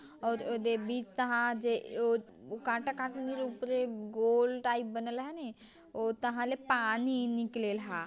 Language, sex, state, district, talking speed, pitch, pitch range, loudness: Chhattisgarhi, female, Chhattisgarh, Jashpur, 155 wpm, 235 Hz, 230-255 Hz, -33 LUFS